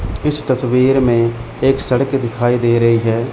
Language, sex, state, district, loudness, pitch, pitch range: Hindi, male, Chandigarh, Chandigarh, -15 LUFS, 120 Hz, 115-135 Hz